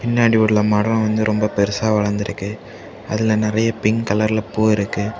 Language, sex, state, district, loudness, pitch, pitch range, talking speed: Tamil, male, Tamil Nadu, Kanyakumari, -18 LUFS, 110 Hz, 105-110 Hz, 150 wpm